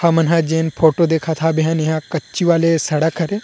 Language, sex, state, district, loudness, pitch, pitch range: Chhattisgarhi, male, Chhattisgarh, Rajnandgaon, -17 LUFS, 160 Hz, 160-165 Hz